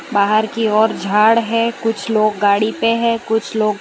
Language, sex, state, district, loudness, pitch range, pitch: Hindi, female, Gujarat, Valsad, -16 LUFS, 210-230 Hz, 220 Hz